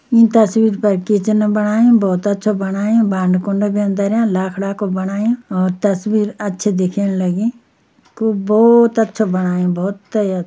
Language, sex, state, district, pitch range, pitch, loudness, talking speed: Garhwali, female, Uttarakhand, Uttarkashi, 190-220 Hz, 205 Hz, -15 LUFS, 155 wpm